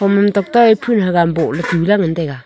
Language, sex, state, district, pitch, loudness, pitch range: Wancho, female, Arunachal Pradesh, Longding, 195 Hz, -14 LUFS, 165-205 Hz